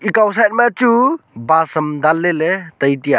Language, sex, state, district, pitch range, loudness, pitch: Wancho, male, Arunachal Pradesh, Longding, 155-235 Hz, -15 LUFS, 175 Hz